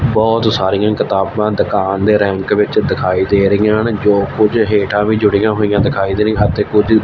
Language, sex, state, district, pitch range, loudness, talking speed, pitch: Punjabi, male, Punjab, Fazilka, 100-110 Hz, -13 LUFS, 185 wpm, 105 Hz